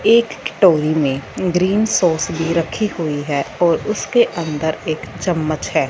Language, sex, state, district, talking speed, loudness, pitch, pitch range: Hindi, female, Punjab, Fazilka, 150 wpm, -18 LUFS, 165 Hz, 155-190 Hz